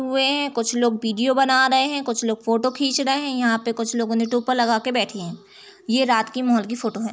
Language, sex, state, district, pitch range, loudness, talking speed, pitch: Hindi, female, Uttar Pradesh, Jalaun, 230-265 Hz, -21 LUFS, 250 wpm, 240 Hz